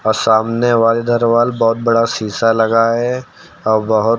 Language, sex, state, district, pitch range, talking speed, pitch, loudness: Hindi, male, Uttar Pradesh, Lucknow, 110-120 Hz, 145 wpm, 115 Hz, -14 LUFS